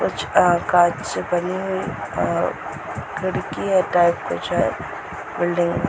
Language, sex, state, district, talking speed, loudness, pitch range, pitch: Hindi, female, Bihar, Muzaffarpur, 140 wpm, -21 LUFS, 175-185 Hz, 175 Hz